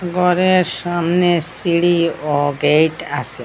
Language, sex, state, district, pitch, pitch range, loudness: Bengali, female, Assam, Hailakandi, 170 Hz, 150-180 Hz, -16 LUFS